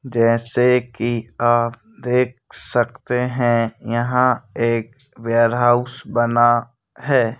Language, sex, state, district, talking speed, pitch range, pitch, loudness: Hindi, male, Madhya Pradesh, Bhopal, 90 wpm, 115-125 Hz, 120 Hz, -18 LUFS